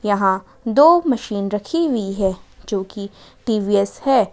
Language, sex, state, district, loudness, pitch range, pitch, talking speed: Hindi, female, Jharkhand, Ranchi, -19 LUFS, 200-255 Hz, 205 Hz, 125 wpm